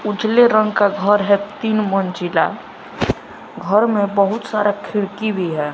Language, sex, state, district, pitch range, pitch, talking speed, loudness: Hindi, male, Bihar, West Champaran, 200-215 Hz, 205 Hz, 145 wpm, -17 LUFS